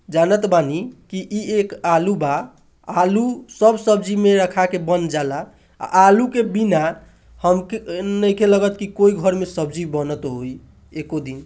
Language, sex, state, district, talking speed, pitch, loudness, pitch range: Hindi, male, Bihar, East Champaran, 160 wpm, 185 Hz, -18 LUFS, 165-205 Hz